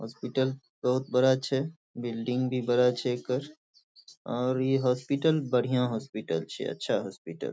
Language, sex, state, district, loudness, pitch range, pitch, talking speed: Maithili, male, Bihar, Saharsa, -29 LUFS, 125-130 Hz, 125 Hz, 145 wpm